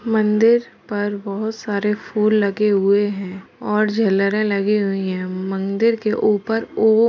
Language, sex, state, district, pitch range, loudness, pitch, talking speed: Hindi, female, Bihar, Gopalganj, 200-220 Hz, -19 LUFS, 210 Hz, 150 wpm